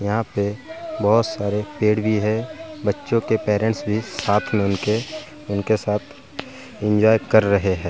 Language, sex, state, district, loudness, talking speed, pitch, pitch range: Hindi, male, Bihar, Vaishali, -21 LUFS, 145 wpm, 110 Hz, 105-115 Hz